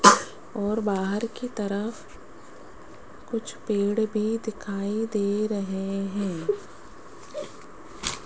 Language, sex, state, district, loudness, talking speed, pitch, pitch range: Hindi, female, Rajasthan, Jaipur, -28 LUFS, 80 wpm, 210 Hz, 200-220 Hz